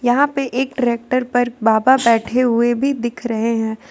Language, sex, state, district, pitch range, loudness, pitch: Hindi, female, Jharkhand, Ranchi, 230-260 Hz, -17 LUFS, 245 Hz